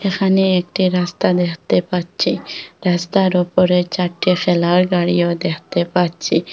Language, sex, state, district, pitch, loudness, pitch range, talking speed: Bengali, female, Assam, Hailakandi, 180 Hz, -17 LUFS, 175-185 Hz, 110 wpm